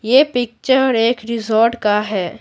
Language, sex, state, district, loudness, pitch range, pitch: Hindi, female, Bihar, Patna, -16 LUFS, 215-250 Hz, 230 Hz